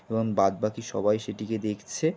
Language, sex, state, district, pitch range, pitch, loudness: Bengali, male, West Bengal, Kolkata, 105-110 Hz, 105 Hz, -28 LUFS